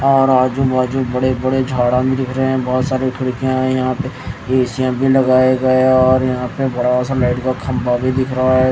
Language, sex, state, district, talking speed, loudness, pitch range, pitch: Hindi, male, Odisha, Khordha, 225 wpm, -16 LUFS, 125-130 Hz, 130 Hz